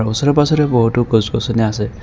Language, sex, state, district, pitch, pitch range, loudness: Assamese, male, Assam, Kamrup Metropolitan, 115 Hz, 110-140 Hz, -15 LUFS